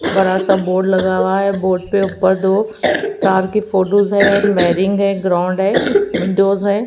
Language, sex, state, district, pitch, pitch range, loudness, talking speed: Hindi, female, Haryana, Rohtak, 195 Hz, 185-200 Hz, -15 LUFS, 175 wpm